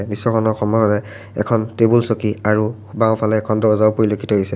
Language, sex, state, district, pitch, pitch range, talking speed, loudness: Assamese, male, Assam, Sonitpur, 110 Hz, 105-110 Hz, 145 wpm, -17 LUFS